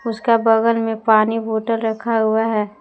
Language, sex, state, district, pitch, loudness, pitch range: Hindi, female, Jharkhand, Palamu, 225 Hz, -17 LUFS, 220-230 Hz